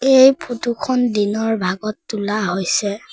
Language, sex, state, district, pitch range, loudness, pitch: Assamese, female, Assam, Sonitpur, 205-245 Hz, -18 LUFS, 215 Hz